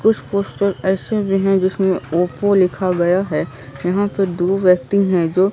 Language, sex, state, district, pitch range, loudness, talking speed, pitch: Hindi, female, Bihar, Katihar, 175-195 Hz, -17 LUFS, 175 wpm, 190 Hz